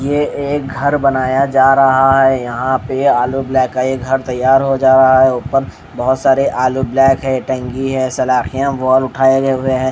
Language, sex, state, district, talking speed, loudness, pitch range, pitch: Hindi, male, Haryana, Rohtak, 200 wpm, -13 LUFS, 130-135 Hz, 130 Hz